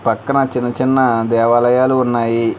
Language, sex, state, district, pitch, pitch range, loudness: Telugu, male, Telangana, Hyderabad, 120 Hz, 115-130 Hz, -15 LUFS